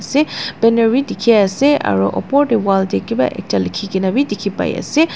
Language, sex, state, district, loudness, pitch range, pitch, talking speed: Nagamese, female, Nagaland, Dimapur, -16 LUFS, 195-275 Hz, 225 Hz, 210 wpm